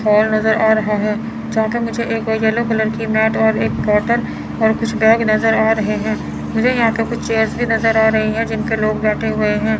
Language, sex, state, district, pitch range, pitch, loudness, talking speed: Hindi, female, Chandigarh, Chandigarh, 220-225 Hz, 220 Hz, -16 LUFS, 230 wpm